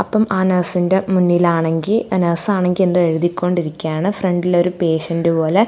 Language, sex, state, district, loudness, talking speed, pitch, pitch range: Malayalam, female, Kerala, Thiruvananthapuram, -17 LUFS, 115 wpm, 180 Hz, 170-185 Hz